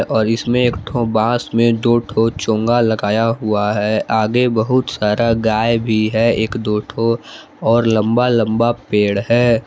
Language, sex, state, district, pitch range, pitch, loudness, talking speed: Hindi, male, Jharkhand, Palamu, 110-120 Hz, 115 Hz, -16 LUFS, 160 wpm